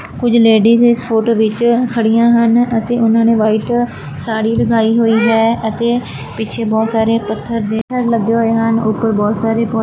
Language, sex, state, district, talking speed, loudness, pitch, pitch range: Punjabi, female, Punjab, Fazilka, 175 wpm, -13 LUFS, 225 Hz, 220-235 Hz